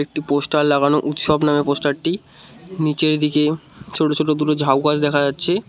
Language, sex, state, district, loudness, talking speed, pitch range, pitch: Bengali, male, West Bengal, Cooch Behar, -18 LUFS, 160 wpm, 145-155 Hz, 150 Hz